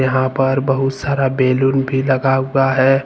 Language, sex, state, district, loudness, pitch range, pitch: Hindi, male, Jharkhand, Ranchi, -16 LUFS, 130-135 Hz, 135 Hz